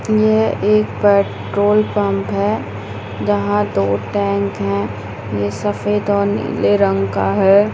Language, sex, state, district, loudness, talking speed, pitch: Hindi, female, Bihar, Madhepura, -17 LUFS, 125 wpm, 105 Hz